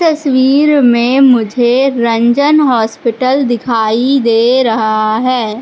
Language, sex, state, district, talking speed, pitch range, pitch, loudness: Hindi, female, Madhya Pradesh, Katni, 95 wpm, 230-270 Hz, 245 Hz, -11 LUFS